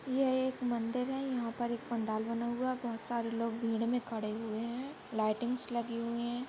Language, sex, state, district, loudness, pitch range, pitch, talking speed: Hindi, female, Goa, North and South Goa, -35 LUFS, 230-250 Hz, 235 Hz, 220 wpm